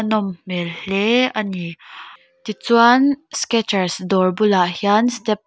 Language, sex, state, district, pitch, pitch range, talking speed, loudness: Mizo, female, Mizoram, Aizawl, 210 Hz, 185-230 Hz, 130 wpm, -18 LUFS